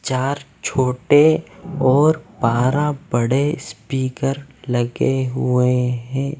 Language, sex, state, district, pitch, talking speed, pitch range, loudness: Hindi, male, Punjab, Fazilka, 130 Hz, 85 wpm, 125-145 Hz, -19 LUFS